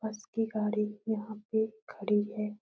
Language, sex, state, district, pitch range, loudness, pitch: Hindi, female, Uttar Pradesh, Etah, 210-220 Hz, -33 LUFS, 215 Hz